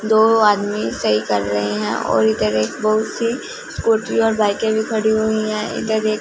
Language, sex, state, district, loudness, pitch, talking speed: Hindi, female, Punjab, Fazilka, -18 LUFS, 215 Hz, 195 wpm